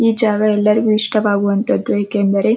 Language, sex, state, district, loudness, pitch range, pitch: Kannada, female, Karnataka, Dharwad, -15 LUFS, 205-215 Hz, 210 Hz